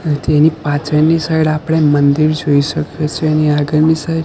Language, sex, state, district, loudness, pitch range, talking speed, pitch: Gujarati, male, Gujarat, Gandhinagar, -13 LUFS, 150-160 Hz, 185 wpm, 155 Hz